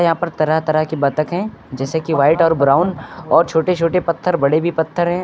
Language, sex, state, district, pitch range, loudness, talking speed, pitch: Hindi, male, Uttar Pradesh, Lucknow, 155-175 Hz, -17 LUFS, 240 wpm, 165 Hz